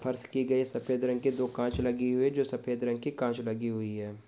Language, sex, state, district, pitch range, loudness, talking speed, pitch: Hindi, male, Uttar Pradesh, Etah, 120-130 Hz, -31 LUFS, 250 wpm, 125 Hz